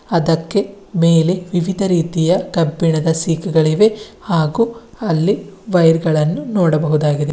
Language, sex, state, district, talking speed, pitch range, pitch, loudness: Kannada, female, Karnataka, Bidar, 100 wpm, 160-195 Hz, 170 Hz, -16 LUFS